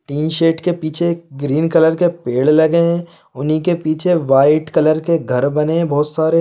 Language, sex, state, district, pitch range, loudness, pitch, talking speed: Hindi, male, Chhattisgarh, Bilaspur, 150-170 Hz, -15 LUFS, 160 Hz, 215 wpm